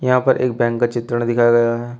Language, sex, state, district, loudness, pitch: Hindi, male, Uttar Pradesh, Shamli, -17 LUFS, 120 Hz